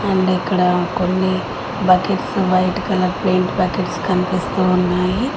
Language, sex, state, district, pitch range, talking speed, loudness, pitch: Telugu, female, Telangana, Mahabubabad, 180-190 Hz, 100 wpm, -18 LUFS, 185 Hz